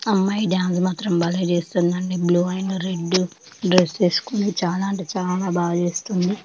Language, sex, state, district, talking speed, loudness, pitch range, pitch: Telugu, female, Andhra Pradesh, Chittoor, 160 wpm, -21 LUFS, 175-190 Hz, 180 Hz